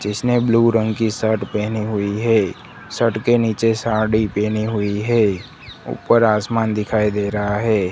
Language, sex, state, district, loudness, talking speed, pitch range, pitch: Hindi, male, Gujarat, Gandhinagar, -18 LUFS, 160 wpm, 105-115 Hz, 110 Hz